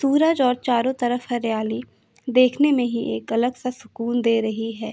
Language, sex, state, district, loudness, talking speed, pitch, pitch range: Hindi, female, Uttar Pradesh, Hamirpur, -22 LUFS, 180 wpm, 240 Hz, 225-255 Hz